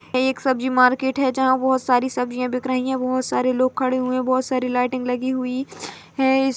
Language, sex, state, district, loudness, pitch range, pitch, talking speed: Hindi, female, Chhattisgarh, Rajnandgaon, -21 LUFS, 255-260 Hz, 255 Hz, 210 wpm